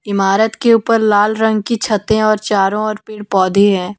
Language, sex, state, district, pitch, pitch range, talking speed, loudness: Hindi, female, Jharkhand, Deoghar, 215 Hz, 200-220 Hz, 195 wpm, -14 LUFS